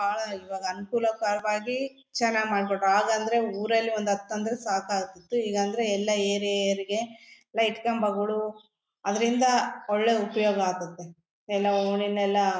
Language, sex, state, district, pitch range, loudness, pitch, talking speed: Kannada, female, Karnataka, Bellary, 200-225 Hz, -27 LUFS, 210 Hz, 130 wpm